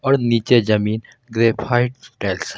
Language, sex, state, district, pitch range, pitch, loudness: Hindi, male, Jharkhand, Ranchi, 110-125 Hz, 120 Hz, -19 LUFS